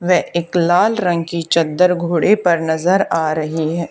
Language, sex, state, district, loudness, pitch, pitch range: Hindi, female, Haryana, Charkhi Dadri, -16 LUFS, 170 Hz, 165-180 Hz